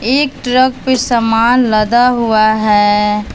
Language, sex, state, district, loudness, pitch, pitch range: Hindi, female, Bihar, West Champaran, -12 LUFS, 235 Hz, 215-250 Hz